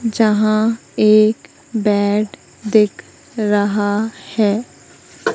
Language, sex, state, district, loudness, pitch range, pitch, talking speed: Hindi, female, Madhya Pradesh, Katni, -17 LUFS, 210-225 Hz, 215 Hz, 65 wpm